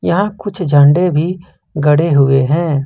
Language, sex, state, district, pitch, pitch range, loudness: Hindi, male, Jharkhand, Ranchi, 155 Hz, 145-180 Hz, -13 LUFS